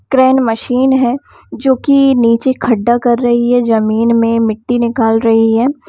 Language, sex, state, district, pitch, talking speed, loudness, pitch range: Hindi, female, Bihar, Samastipur, 240 Hz, 155 wpm, -12 LUFS, 230-260 Hz